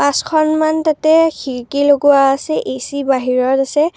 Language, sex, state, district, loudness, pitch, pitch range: Assamese, female, Assam, Kamrup Metropolitan, -14 LUFS, 285 Hz, 270-310 Hz